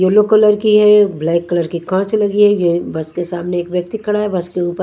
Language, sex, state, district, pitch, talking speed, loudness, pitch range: Hindi, female, Odisha, Nuapada, 185 Hz, 260 wpm, -14 LUFS, 175-210 Hz